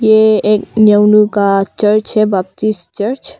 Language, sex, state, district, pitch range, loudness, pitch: Hindi, female, Arunachal Pradesh, Longding, 200-215 Hz, -12 LUFS, 210 Hz